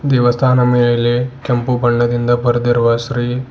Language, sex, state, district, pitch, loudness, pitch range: Kannada, male, Karnataka, Bidar, 120 Hz, -15 LUFS, 120-125 Hz